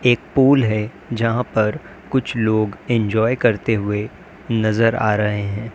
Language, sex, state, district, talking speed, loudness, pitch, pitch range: Hindi, male, Uttar Pradesh, Lalitpur, 145 wpm, -19 LUFS, 110 Hz, 105-120 Hz